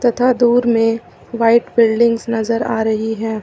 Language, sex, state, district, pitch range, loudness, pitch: Hindi, female, Uttar Pradesh, Lucknow, 225-235 Hz, -15 LUFS, 230 Hz